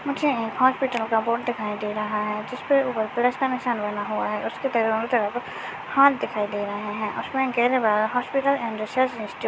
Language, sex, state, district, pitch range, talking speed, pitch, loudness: Hindi, male, Maharashtra, Nagpur, 215-260 Hz, 165 wpm, 235 Hz, -24 LUFS